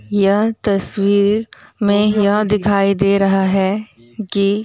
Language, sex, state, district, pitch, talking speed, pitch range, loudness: Hindi, female, Bihar, Muzaffarpur, 200 Hz, 130 wpm, 195-210 Hz, -16 LUFS